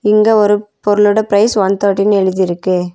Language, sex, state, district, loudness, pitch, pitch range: Tamil, female, Tamil Nadu, Nilgiris, -12 LUFS, 205 Hz, 190-210 Hz